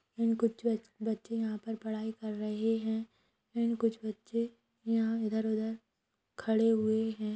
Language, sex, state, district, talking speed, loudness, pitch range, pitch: Hindi, female, Bihar, Gopalganj, 140 wpm, -34 LUFS, 220-230 Hz, 225 Hz